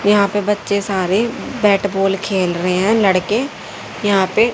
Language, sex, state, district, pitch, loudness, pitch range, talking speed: Hindi, female, Haryana, Rohtak, 200 Hz, -17 LUFS, 190-210 Hz, 160 wpm